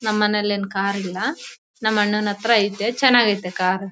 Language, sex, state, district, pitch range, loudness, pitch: Kannada, female, Karnataka, Bellary, 200-220 Hz, -20 LUFS, 210 Hz